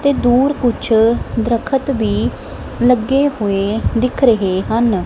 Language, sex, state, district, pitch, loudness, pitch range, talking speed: Punjabi, male, Punjab, Kapurthala, 235 Hz, -15 LUFS, 220-260 Hz, 120 wpm